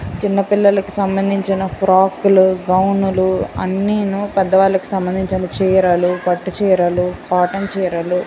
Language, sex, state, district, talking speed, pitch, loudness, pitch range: Telugu, female, Andhra Pradesh, Guntur, 115 wpm, 190 Hz, -16 LUFS, 185-195 Hz